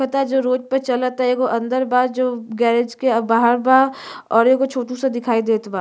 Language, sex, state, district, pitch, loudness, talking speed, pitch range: Bhojpuri, female, Uttar Pradesh, Gorakhpur, 250 Hz, -18 LUFS, 205 wpm, 235-260 Hz